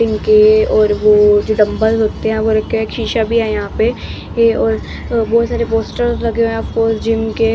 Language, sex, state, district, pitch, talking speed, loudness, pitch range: Hindi, female, Bihar, West Champaran, 225 Hz, 215 wpm, -14 LUFS, 215-230 Hz